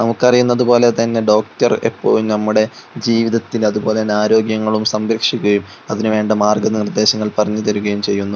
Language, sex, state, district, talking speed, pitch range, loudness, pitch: Malayalam, male, Kerala, Kozhikode, 135 wpm, 105-115 Hz, -15 LUFS, 110 Hz